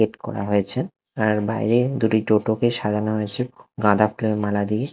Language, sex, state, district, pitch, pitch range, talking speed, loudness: Bengali, male, Odisha, Khordha, 110 Hz, 105-120 Hz, 170 wpm, -22 LUFS